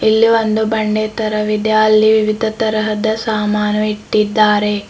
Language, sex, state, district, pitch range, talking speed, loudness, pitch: Kannada, female, Karnataka, Bidar, 210-220 Hz, 110 wpm, -15 LUFS, 215 Hz